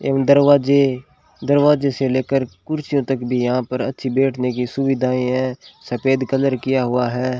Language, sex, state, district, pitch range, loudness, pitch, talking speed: Hindi, male, Rajasthan, Bikaner, 125-140 Hz, -18 LUFS, 135 Hz, 160 wpm